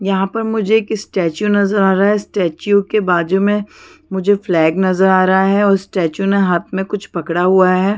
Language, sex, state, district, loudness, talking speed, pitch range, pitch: Hindi, female, Chhattisgarh, Bastar, -15 LUFS, 210 wpm, 185-205 Hz, 195 Hz